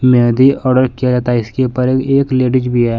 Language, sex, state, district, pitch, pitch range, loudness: Hindi, male, Bihar, Kaimur, 125 Hz, 125-130 Hz, -13 LUFS